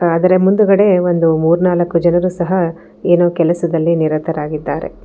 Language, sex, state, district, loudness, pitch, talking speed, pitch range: Kannada, female, Karnataka, Bangalore, -14 LUFS, 170 Hz, 105 wpm, 165-180 Hz